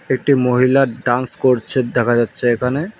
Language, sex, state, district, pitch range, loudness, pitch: Bengali, male, West Bengal, Alipurduar, 120-130 Hz, -16 LUFS, 125 Hz